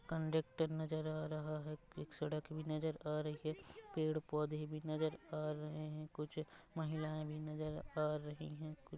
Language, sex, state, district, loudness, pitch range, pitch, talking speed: Hindi, female, Chhattisgarh, Rajnandgaon, -43 LUFS, 150-155 Hz, 155 Hz, 175 wpm